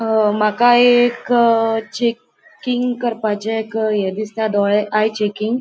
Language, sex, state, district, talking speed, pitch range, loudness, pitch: Konkani, female, Goa, North and South Goa, 140 wpm, 215-240 Hz, -17 LUFS, 225 Hz